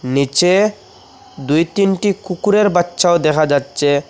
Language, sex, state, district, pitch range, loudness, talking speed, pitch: Bengali, male, Assam, Hailakandi, 145-195 Hz, -15 LUFS, 115 wpm, 175 Hz